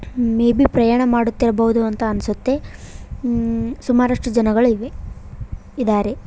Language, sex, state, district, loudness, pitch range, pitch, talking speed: Kannada, female, Karnataka, Koppal, -18 LUFS, 230-245 Hz, 235 Hz, 115 wpm